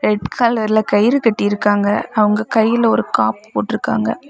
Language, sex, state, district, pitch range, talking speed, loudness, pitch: Tamil, female, Tamil Nadu, Kanyakumari, 205-230 Hz, 125 wpm, -16 LUFS, 215 Hz